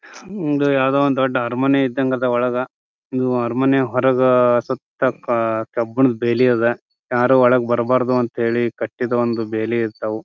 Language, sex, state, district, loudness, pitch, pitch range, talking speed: Kannada, male, Karnataka, Bijapur, -18 LUFS, 125 Hz, 120-130 Hz, 145 wpm